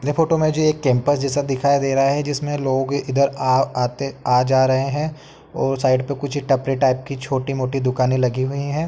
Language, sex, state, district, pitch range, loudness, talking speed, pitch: Hindi, male, Uttar Pradesh, Etah, 130-145 Hz, -20 LUFS, 225 wpm, 135 Hz